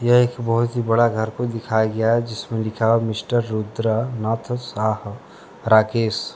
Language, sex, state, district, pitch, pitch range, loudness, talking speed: Hindi, male, Jharkhand, Deoghar, 115 Hz, 110-120 Hz, -21 LUFS, 180 wpm